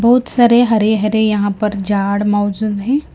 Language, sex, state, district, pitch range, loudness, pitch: Hindi, female, Himachal Pradesh, Shimla, 205-235 Hz, -14 LUFS, 215 Hz